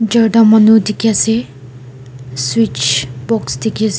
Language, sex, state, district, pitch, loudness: Nagamese, female, Nagaland, Dimapur, 205 Hz, -12 LUFS